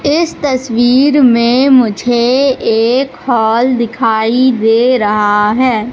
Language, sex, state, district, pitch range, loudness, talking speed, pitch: Hindi, female, Madhya Pradesh, Katni, 225-260 Hz, -11 LUFS, 100 wpm, 245 Hz